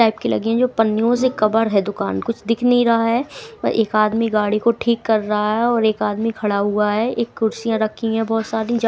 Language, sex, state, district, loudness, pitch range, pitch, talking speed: Hindi, female, Himachal Pradesh, Shimla, -19 LUFS, 215-235 Hz, 225 Hz, 250 wpm